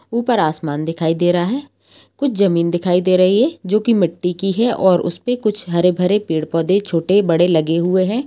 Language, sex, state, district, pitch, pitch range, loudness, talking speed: Hindi, female, Bihar, Purnia, 185 Hz, 170-210 Hz, -16 LUFS, 205 wpm